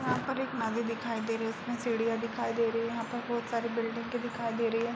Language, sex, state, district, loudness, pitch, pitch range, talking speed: Hindi, female, Uttar Pradesh, Jalaun, -33 LUFS, 230 Hz, 230-235 Hz, 280 wpm